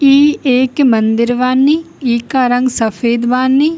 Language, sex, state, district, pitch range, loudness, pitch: Bhojpuri, female, Bihar, East Champaran, 240-275 Hz, -12 LUFS, 255 Hz